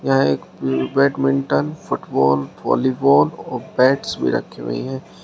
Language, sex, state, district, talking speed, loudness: Hindi, male, Uttar Pradesh, Shamli, 125 wpm, -19 LUFS